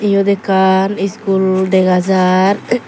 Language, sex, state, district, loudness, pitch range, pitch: Chakma, female, Tripura, Dhalai, -13 LUFS, 190-200 Hz, 190 Hz